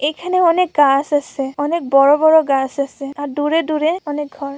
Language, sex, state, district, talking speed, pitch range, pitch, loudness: Bengali, female, West Bengal, Purulia, 195 wpm, 280-315 Hz, 290 Hz, -16 LUFS